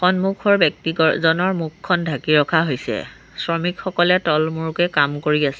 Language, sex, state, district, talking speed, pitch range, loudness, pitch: Assamese, female, Assam, Sonitpur, 130 wpm, 155-180 Hz, -19 LUFS, 165 Hz